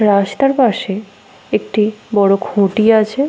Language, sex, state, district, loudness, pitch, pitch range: Bengali, female, West Bengal, Paschim Medinipur, -15 LUFS, 210 Hz, 200-220 Hz